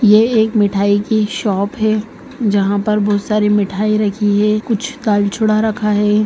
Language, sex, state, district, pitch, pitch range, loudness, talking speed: Hindi, female, Bihar, Gaya, 210 Hz, 205-215 Hz, -15 LUFS, 165 wpm